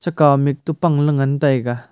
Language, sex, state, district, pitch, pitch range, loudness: Wancho, male, Arunachal Pradesh, Longding, 145 Hz, 135-150 Hz, -17 LUFS